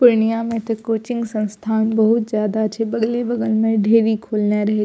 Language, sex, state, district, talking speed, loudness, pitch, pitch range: Maithili, female, Bihar, Purnia, 175 wpm, -19 LUFS, 220 Hz, 215-230 Hz